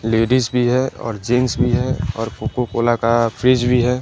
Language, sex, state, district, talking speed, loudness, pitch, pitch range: Hindi, male, Chandigarh, Chandigarh, 195 wpm, -18 LUFS, 120 Hz, 115-125 Hz